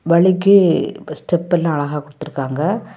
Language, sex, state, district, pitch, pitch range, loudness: Tamil, female, Tamil Nadu, Kanyakumari, 170 Hz, 150-185 Hz, -16 LUFS